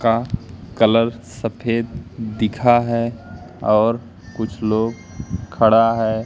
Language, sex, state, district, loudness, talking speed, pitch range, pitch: Hindi, male, Madhya Pradesh, Katni, -19 LUFS, 95 wpm, 105-115 Hz, 115 Hz